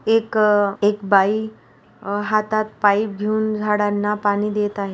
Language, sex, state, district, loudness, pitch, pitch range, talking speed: Marathi, female, Maharashtra, Pune, -19 LUFS, 210 Hz, 205-215 Hz, 145 wpm